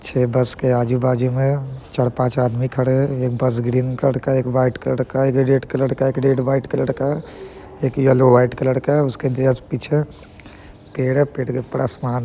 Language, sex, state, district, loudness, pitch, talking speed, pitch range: Hindi, male, Bihar, Muzaffarpur, -19 LUFS, 130 Hz, 215 wpm, 125-135 Hz